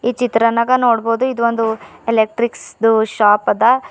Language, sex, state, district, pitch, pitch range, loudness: Kannada, female, Karnataka, Bidar, 230 Hz, 225-245 Hz, -15 LUFS